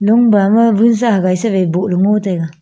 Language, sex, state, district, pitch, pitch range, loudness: Wancho, female, Arunachal Pradesh, Longding, 200 Hz, 185-225 Hz, -13 LUFS